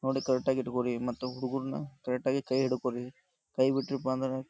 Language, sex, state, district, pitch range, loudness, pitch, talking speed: Kannada, male, Karnataka, Dharwad, 125-135 Hz, -32 LUFS, 130 Hz, 185 wpm